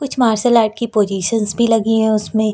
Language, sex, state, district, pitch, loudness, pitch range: Hindi, female, Uttar Pradesh, Lucknow, 225 Hz, -15 LUFS, 215-235 Hz